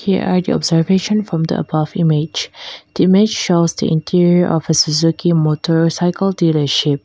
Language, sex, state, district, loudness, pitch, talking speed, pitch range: English, female, Mizoram, Aizawl, -15 LUFS, 165 Hz, 155 wpm, 160-185 Hz